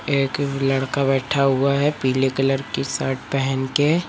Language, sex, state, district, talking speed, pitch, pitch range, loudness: Hindi, male, Chhattisgarh, Raipur, 160 wpm, 135 Hz, 135-140 Hz, -21 LUFS